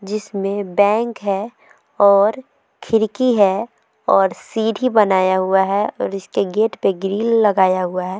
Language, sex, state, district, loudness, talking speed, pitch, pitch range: Hindi, female, Bihar, Vaishali, -17 LUFS, 140 wpm, 205 Hz, 195-220 Hz